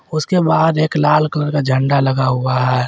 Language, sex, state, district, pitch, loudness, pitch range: Hindi, male, Jharkhand, Garhwa, 145 Hz, -15 LUFS, 130-155 Hz